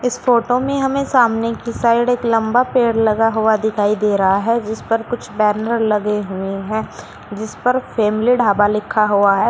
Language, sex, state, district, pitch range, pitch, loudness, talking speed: Hindi, female, Uttar Pradesh, Shamli, 210-240 Hz, 225 Hz, -16 LUFS, 190 wpm